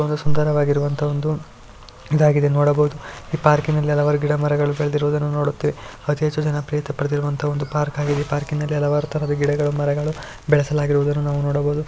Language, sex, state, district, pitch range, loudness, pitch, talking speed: Kannada, male, Karnataka, Shimoga, 145-150 Hz, -20 LUFS, 145 Hz, 125 wpm